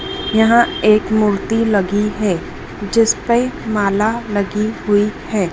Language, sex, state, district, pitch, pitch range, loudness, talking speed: Hindi, female, Madhya Pradesh, Dhar, 215 Hz, 205-225 Hz, -16 LUFS, 110 wpm